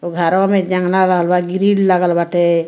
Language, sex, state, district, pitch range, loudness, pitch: Bhojpuri, female, Bihar, Muzaffarpur, 175-190 Hz, -15 LUFS, 180 Hz